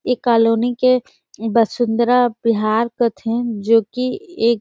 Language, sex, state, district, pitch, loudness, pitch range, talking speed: Surgujia, female, Chhattisgarh, Sarguja, 235 Hz, -17 LUFS, 225-245 Hz, 130 wpm